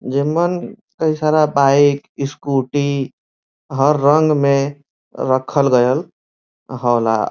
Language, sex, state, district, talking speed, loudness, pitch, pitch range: Bhojpuri, male, Uttar Pradesh, Varanasi, 100 wpm, -16 LUFS, 140 Hz, 130-145 Hz